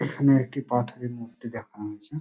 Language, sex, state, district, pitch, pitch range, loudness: Bengali, male, West Bengal, Dakshin Dinajpur, 120 Hz, 115-140 Hz, -27 LUFS